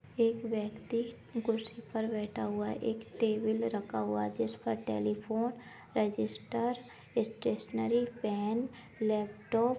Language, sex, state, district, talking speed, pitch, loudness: Hindi, female, Uttarakhand, Tehri Garhwal, 120 wpm, 220 Hz, -35 LUFS